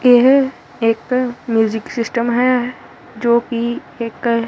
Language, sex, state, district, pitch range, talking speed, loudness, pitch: Punjabi, male, Punjab, Kapurthala, 230-250 Hz, 105 wpm, -17 LUFS, 240 Hz